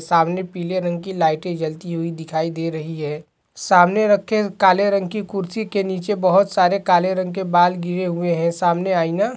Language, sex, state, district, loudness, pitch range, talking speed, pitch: Hindi, male, Uttar Pradesh, Hamirpur, -19 LUFS, 170-195 Hz, 200 wpm, 180 Hz